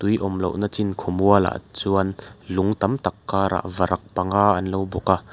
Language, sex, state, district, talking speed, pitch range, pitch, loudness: Mizo, male, Mizoram, Aizawl, 215 wpm, 90-100 Hz, 95 Hz, -22 LUFS